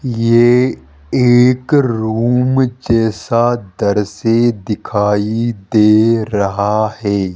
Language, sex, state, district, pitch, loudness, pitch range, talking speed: Hindi, male, Rajasthan, Jaipur, 115 Hz, -14 LUFS, 105-120 Hz, 75 wpm